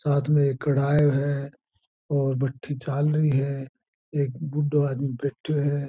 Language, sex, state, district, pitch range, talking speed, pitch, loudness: Marwari, male, Rajasthan, Churu, 140-145 Hz, 145 wpm, 140 Hz, -25 LUFS